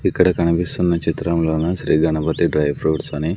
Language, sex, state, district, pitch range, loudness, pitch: Telugu, male, Andhra Pradesh, Sri Satya Sai, 80-85 Hz, -19 LUFS, 80 Hz